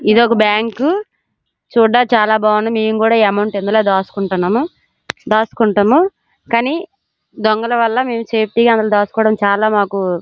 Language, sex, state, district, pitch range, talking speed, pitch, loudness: Telugu, female, Andhra Pradesh, Srikakulam, 210-235 Hz, 105 wpm, 220 Hz, -14 LUFS